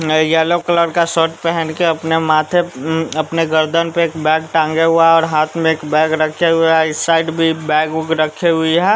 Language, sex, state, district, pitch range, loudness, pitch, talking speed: Hindi, male, Bihar, West Champaran, 155-165 Hz, -15 LUFS, 160 Hz, 195 wpm